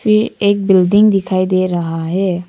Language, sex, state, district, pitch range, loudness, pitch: Hindi, female, Arunachal Pradesh, Papum Pare, 180-205 Hz, -14 LUFS, 185 Hz